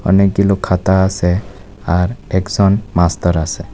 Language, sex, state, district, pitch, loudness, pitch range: Bengali, male, Tripura, West Tripura, 95 Hz, -15 LUFS, 90-100 Hz